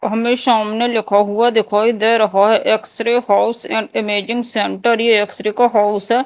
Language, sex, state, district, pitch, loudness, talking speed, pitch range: Hindi, female, Madhya Pradesh, Dhar, 220 Hz, -15 LUFS, 170 wpm, 210-235 Hz